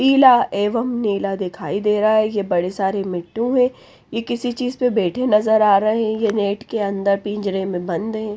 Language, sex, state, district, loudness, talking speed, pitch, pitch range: Hindi, female, Haryana, Rohtak, -19 LUFS, 210 wpm, 210 Hz, 195-230 Hz